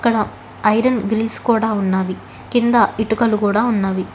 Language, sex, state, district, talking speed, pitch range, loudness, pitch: Telugu, female, Telangana, Hyderabad, 130 wpm, 205-235 Hz, -18 LUFS, 220 Hz